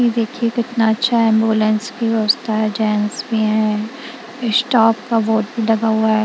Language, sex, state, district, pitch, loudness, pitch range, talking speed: Hindi, female, Punjab, Kapurthala, 225 Hz, -17 LUFS, 215-235 Hz, 165 wpm